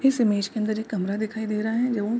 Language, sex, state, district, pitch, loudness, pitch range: Hindi, female, Bihar, Darbhanga, 220 Hz, -25 LUFS, 210-230 Hz